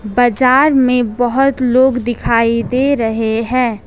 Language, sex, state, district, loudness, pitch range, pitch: Hindi, female, Jharkhand, Ranchi, -13 LUFS, 230-260 Hz, 245 Hz